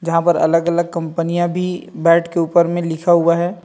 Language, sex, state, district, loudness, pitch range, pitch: Hindi, male, Chhattisgarh, Rajnandgaon, -16 LUFS, 170-175 Hz, 170 Hz